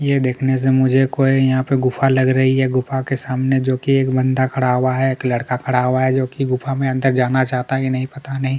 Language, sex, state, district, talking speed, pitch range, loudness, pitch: Hindi, male, Chhattisgarh, Kabirdham, 250 wpm, 130-135 Hz, -17 LUFS, 130 Hz